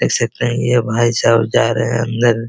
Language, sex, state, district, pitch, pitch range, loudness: Hindi, male, Bihar, Araria, 115 Hz, 115-120 Hz, -15 LUFS